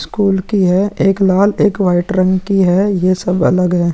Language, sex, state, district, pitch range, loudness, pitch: Hindi, male, Bihar, Vaishali, 180-200 Hz, -13 LUFS, 190 Hz